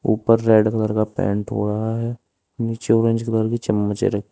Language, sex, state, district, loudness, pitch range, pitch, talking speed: Hindi, male, Uttar Pradesh, Saharanpur, -20 LUFS, 105-115 Hz, 110 Hz, 180 wpm